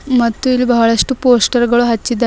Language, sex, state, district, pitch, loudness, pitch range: Kannada, female, Karnataka, Bidar, 240 Hz, -13 LUFS, 235-250 Hz